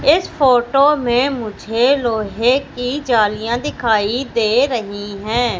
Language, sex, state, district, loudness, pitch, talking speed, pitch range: Hindi, female, Madhya Pradesh, Katni, -17 LUFS, 240 Hz, 120 wpm, 220-265 Hz